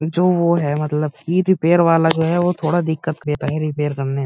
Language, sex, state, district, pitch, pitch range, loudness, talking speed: Hindi, male, Uttar Pradesh, Muzaffarnagar, 160 Hz, 150-170 Hz, -18 LUFS, 240 wpm